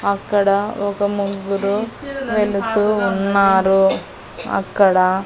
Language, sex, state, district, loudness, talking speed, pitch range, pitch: Telugu, female, Andhra Pradesh, Annamaya, -18 LUFS, 70 wpm, 195-210 Hz, 200 Hz